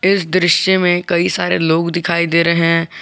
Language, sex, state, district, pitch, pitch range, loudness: Hindi, male, Jharkhand, Garhwa, 170 Hz, 170-185 Hz, -14 LUFS